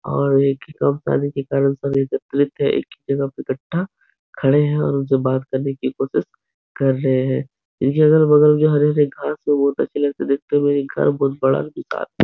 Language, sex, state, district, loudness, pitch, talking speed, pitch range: Hindi, male, Uttar Pradesh, Etah, -19 LUFS, 140 Hz, 165 wpm, 135-150 Hz